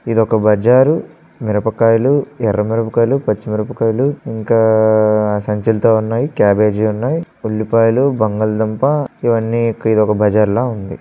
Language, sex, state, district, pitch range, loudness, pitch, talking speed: Telugu, male, Andhra Pradesh, Srikakulam, 110-115 Hz, -15 LUFS, 110 Hz, 100 wpm